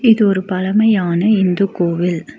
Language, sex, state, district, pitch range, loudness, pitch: Tamil, female, Tamil Nadu, Nilgiris, 175-210 Hz, -15 LUFS, 190 Hz